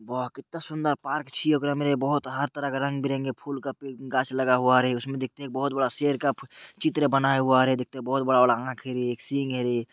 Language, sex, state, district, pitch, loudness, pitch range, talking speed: Maithili, male, Bihar, Purnia, 135 Hz, -26 LUFS, 130-140 Hz, 265 wpm